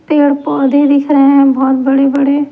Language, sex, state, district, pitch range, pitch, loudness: Hindi, male, Delhi, New Delhi, 275-285 Hz, 280 Hz, -10 LUFS